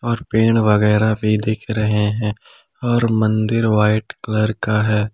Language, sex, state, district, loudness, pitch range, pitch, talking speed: Hindi, male, Jharkhand, Palamu, -18 LUFS, 105-110 Hz, 110 Hz, 150 wpm